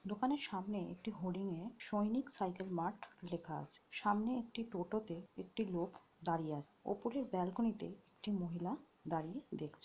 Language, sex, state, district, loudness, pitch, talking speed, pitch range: Bengali, female, West Bengal, Jhargram, -42 LUFS, 195 Hz, 145 wpm, 175-225 Hz